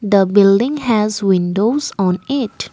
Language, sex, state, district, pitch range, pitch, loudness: English, female, Assam, Kamrup Metropolitan, 195-240 Hz, 210 Hz, -15 LUFS